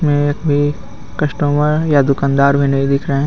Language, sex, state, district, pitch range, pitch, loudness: Hindi, male, Jharkhand, Garhwa, 140-145 Hz, 145 Hz, -15 LUFS